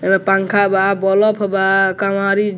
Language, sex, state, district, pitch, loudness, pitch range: Bhojpuri, male, Bihar, Muzaffarpur, 195 Hz, -15 LUFS, 195-200 Hz